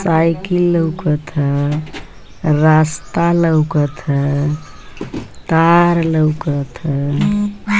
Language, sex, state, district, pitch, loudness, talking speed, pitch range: Bhojpuri, female, Uttar Pradesh, Ghazipur, 155 Hz, -15 LUFS, 70 wpm, 150-170 Hz